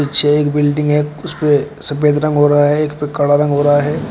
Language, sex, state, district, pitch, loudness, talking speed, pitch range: Hindi, male, Uttar Pradesh, Shamli, 145 Hz, -14 LUFS, 250 wpm, 145-150 Hz